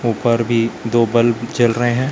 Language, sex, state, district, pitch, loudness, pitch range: Hindi, male, Chhattisgarh, Raipur, 115 Hz, -17 LUFS, 115-120 Hz